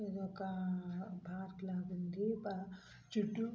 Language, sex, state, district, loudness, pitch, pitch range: Telugu, female, Andhra Pradesh, Anantapur, -42 LUFS, 190 Hz, 185-200 Hz